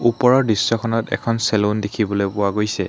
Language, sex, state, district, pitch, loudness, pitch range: Assamese, male, Assam, Hailakandi, 110 Hz, -19 LUFS, 100-115 Hz